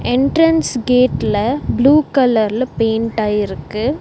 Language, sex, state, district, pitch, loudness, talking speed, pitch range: Tamil, female, Tamil Nadu, Nilgiris, 250 Hz, -15 LUFS, 90 wpm, 225-275 Hz